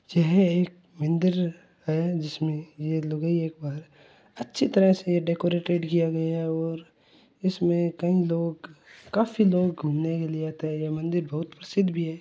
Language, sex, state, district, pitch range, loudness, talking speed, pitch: Hindi, male, Rajasthan, Churu, 160-180 Hz, -26 LUFS, 160 wpm, 170 Hz